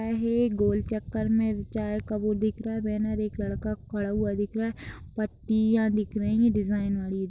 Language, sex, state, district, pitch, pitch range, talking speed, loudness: Hindi, female, Uttar Pradesh, Deoria, 215 Hz, 205-220 Hz, 195 wpm, -28 LUFS